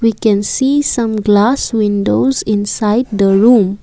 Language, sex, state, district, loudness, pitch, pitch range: English, female, Assam, Kamrup Metropolitan, -13 LUFS, 215 Hz, 205-240 Hz